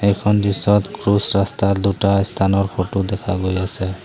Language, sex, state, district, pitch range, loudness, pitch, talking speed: Assamese, male, Assam, Sonitpur, 95-100 Hz, -18 LUFS, 100 Hz, 135 wpm